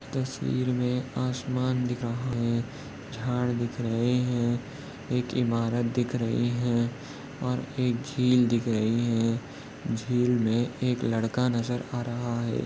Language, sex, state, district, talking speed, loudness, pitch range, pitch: Hindi, male, Maharashtra, Nagpur, 135 wpm, -28 LUFS, 120-125 Hz, 120 Hz